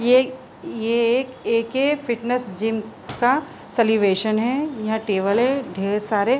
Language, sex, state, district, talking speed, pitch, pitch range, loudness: Hindi, female, Uttar Pradesh, Budaun, 150 wpm, 230 Hz, 215-255 Hz, -21 LUFS